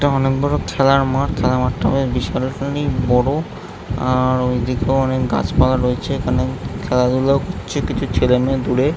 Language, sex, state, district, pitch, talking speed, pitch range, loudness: Bengali, male, West Bengal, Jhargram, 130 Hz, 165 wpm, 125-135 Hz, -18 LUFS